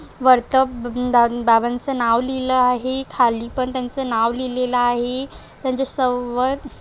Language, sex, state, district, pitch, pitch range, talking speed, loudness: Marathi, female, Maharashtra, Aurangabad, 250 Hz, 240-260 Hz, 130 wpm, -19 LUFS